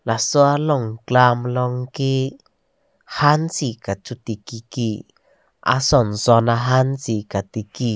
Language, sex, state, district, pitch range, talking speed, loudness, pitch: Karbi, male, Assam, Karbi Anglong, 115-135 Hz, 90 wpm, -19 LUFS, 125 Hz